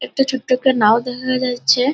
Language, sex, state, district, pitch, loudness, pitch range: Bengali, female, West Bengal, Purulia, 255 Hz, -17 LUFS, 245-260 Hz